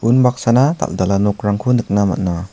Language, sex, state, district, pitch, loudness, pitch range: Garo, male, Meghalaya, South Garo Hills, 105 Hz, -16 LUFS, 100-125 Hz